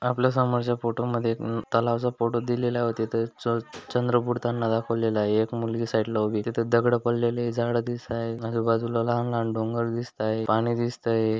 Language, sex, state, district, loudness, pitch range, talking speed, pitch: Marathi, male, Maharashtra, Dhule, -26 LUFS, 115-120 Hz, 160 wpm, 115 Hz